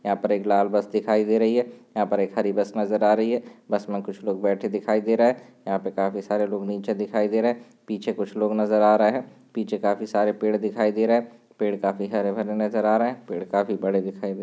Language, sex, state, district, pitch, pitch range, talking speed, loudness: Hindi, male, Maharashtra, Sindhudurg, 105 Hz, 100-110 Hz, 265 wpm, -24 LUFS